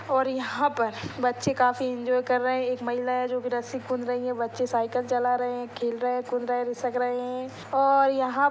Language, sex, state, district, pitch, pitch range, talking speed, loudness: Hindi, female, Chhattisgarh, Sukma, 250 Hz, 245-255 Hz, 225 wpm, -27 LUFS